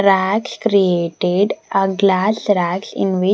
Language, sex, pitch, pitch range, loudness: English, female, 195 Hz, 185-205 Hz, -17 LUFS